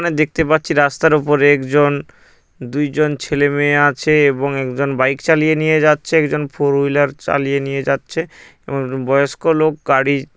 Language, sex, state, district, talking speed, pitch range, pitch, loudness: Bengali, male, West Bengal, Paschim Medinipur, 150 wpm, 140-155 Hz, 145 Hz, -16 LUFS